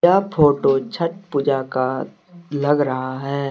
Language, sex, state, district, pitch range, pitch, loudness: Hindi, male, Jharkhand, Deoghar, 135-170 Hz, 145 Hz, -20 LUFS